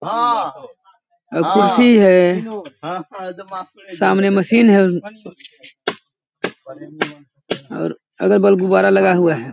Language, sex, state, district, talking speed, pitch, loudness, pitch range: Hindi, male, Chhattisgarh, Balrampur, 70 wpm, 195 Hz, -15 LUFS, 180-215 Hz